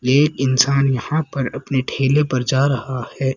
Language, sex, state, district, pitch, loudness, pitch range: Hindi, female, Haryana, Rohtak, 135 Hz, -18 LUFS, 130-140 Hz